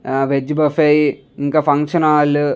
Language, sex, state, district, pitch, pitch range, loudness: Telugu, male, Andhra Pradesh, Chittoor, 150 Hz, 145-155 Hz, -16 LUFS